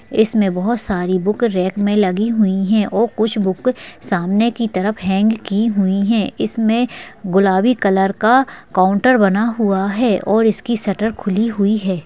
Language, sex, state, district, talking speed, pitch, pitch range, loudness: Hindi, female, Bihar, Madhepura, 165 wpm, 210 Hz, 195-225 Hz, -16 LUFS